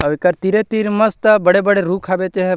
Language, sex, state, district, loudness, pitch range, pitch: Chhattisgarhi, male, Chhattisgarh, Rajnandgaon, -15 LUFS, 185-215 Hz, 190 Hz